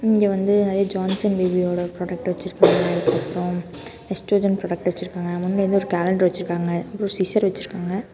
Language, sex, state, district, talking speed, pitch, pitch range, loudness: Tamil, female, Karnataka, Bangalore, 145 wpm, 185 Hz, 175-195 Hz, -22 LUFS